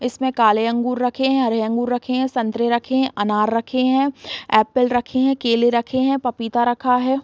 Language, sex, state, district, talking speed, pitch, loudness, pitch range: Hindi, female, Bihar, East Champaran, 200 wpm, 245 Hz, -19 LUFS, 235-260 Hz